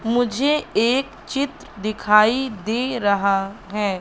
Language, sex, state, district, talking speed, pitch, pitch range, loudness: Hindi, female, Madhya Pradesh, Katni, 105 wpm, 220 Hz, 205-255 Hz, -20 LUFS